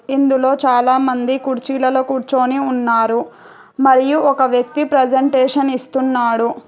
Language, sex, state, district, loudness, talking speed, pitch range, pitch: Telugu, female, Telangana, Hyderabad, -15 LUFS, 90 wpm, 250-270 Hz, 260 Hz